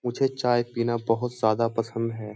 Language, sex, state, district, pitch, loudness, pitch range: Hindi, male, Uttar Pradesh, Jyotiba Phule Nagar, 115 Hz, -26 LUFS, 115-120 Hz